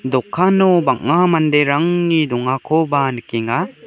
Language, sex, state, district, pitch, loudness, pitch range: Garo, male, Meghalaya, West Garo Hills, 150 Hz, -16 LUFS, 130-175 Hz